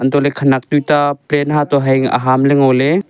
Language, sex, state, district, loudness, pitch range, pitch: Wancho, male, Arunachal Pradesh, Longding, -13 LUFS, 130-145 Hz, 140 Hz